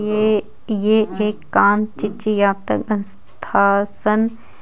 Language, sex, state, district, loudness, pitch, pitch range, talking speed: Hindi, female, Jharkhand, Ranchi, -18 LUFS, 210 Hz, 205-215 Hz, 80 wpm